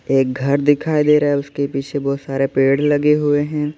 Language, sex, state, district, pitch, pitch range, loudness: Hindi, male, Uttar Pradesh, Lalitpur, 145 Hz, 140-150 Hz, -17 LUFS